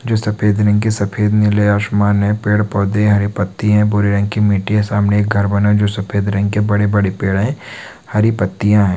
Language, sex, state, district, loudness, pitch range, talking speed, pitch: Hindi, male, Andhra Pradesh, Guntur, -15 LUFS, 100-105 Hz, 215 wpm, 105 Hz